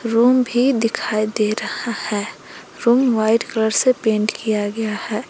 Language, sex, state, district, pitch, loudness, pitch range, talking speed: Hindi, female, Jharkhand, Palamu, 225 Hz, -19 LUFS, 215-240 Hz, 160 wpm